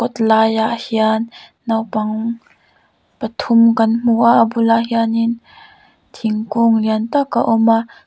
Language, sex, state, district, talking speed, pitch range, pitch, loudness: Mizo, female, Mizoram, Aizawl, 125 wpm, 220-235 Hz, 230 Hz, -16 LUFS